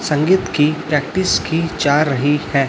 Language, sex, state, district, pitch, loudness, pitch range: Hindi, male, Chhattisgarh, Raipur, 150 Hz, -16 LUFS, 145-165 Hz